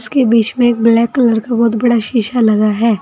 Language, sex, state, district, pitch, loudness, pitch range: Hindi, female, Uttar Pradesh, Saharanpur, 230 Hz, -12 LUFS, 225-240 Hz